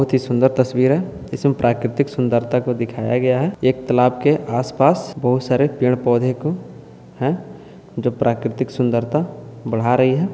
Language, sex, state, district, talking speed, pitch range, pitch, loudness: Hindi, male, Bihar, Purnia, 155 wpm, 120-135 Hz, 125 Hz, -19 LUFS